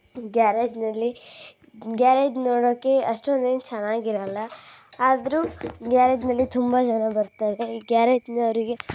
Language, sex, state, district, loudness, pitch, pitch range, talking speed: Kannada, female, Karnataka, Raichur, -23 LUFS, 240 Hz, 225-255 Hz, 85 wpm